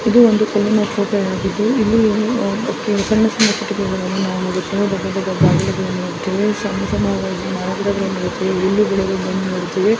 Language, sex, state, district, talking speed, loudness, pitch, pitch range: Kannada, female, Karnataka, Bijapur, 130 wpm, -17 LUFS, 200 Hz, 185-215 Hz